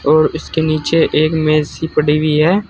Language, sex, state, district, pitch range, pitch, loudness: Hindi, male, Uttar Pradesh, Saharanpur, 155-160 Hz, 155 Hz, -14 LUFS